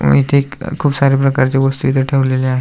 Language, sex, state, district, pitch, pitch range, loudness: Marathi, male, Maharashtra, Aurangabad, 135 Hz, 130-140 Hz, -14 LUFS